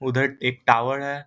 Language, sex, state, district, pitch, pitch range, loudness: Hindi, male, Bihar, Lakhisarai, 130 Hz, 125-140 Hz, -22 LUFS